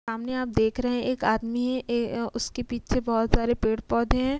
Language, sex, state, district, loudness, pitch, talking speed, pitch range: Hindi, female, Bihar, Vaishali, -26 LUFS, 235 Hz, 220 wpm, 225-250 Hz